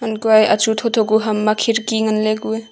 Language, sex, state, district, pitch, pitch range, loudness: Wancho, female, Arunachal Pradesh, Longding, 220 Hz, 215-225 Hz, -16 LUFS